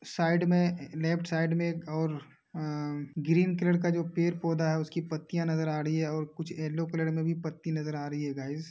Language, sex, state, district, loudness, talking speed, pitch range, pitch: Hindi, male, Uttar Pradesh, Hamirpur, -31 LUFS, 240 wpm, 155-170 Hz, 160 Hz